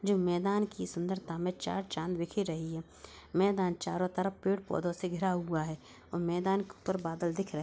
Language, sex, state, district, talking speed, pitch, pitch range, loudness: Hindi, male, Bihar, Bhagalpur, 205 wpm, 180 Hz, 170-195 Hz, -34 LUFS